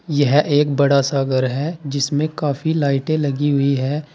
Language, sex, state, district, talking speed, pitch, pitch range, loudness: Hindi, male, Uttar Pradesh, Saharanpur, 175 wpm, 145 Hz, 140-150 Hz, -18 LUFS